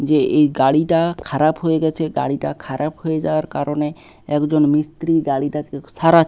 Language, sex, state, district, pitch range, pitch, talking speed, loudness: Bengali, male, West Bengal, Paschim Medinipur, 145-160 Hz, 150 Hz, 145 wpm, -19 LUFS